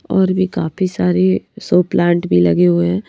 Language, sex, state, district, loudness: Hindi, female, Madhya Pradesh, Bhopal, -15 LUFS